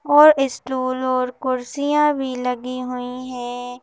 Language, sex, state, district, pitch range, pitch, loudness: Hindi, female, Madhya Pradesh, Bhopal, 250-270 Hz, 255 Hz, -20 LUFS